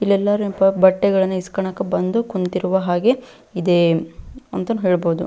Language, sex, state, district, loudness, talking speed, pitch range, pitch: Kannada, female, Karnataka, Belgaum, -19 LUFS, 125 wpm, 180-205 Hz, 190 Hz